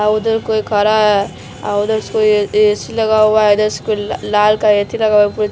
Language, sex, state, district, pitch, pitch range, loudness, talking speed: Hindi, female, Bihar, Patna, 210 Hz, 210-215 Hz, -14 LUFS, 195 wpm